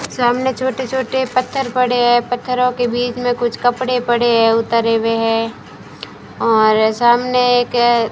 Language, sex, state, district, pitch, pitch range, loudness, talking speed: Hindi, female, Rajasthan, Bikaner, 245 Hz, 230-250 Hz, -16 LUFS, 155 wpm